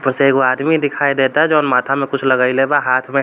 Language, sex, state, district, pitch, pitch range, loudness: Bhojpuri, male, Bihar, East Champaran, 135 Hz, 130-145 Hz, -15 LUFS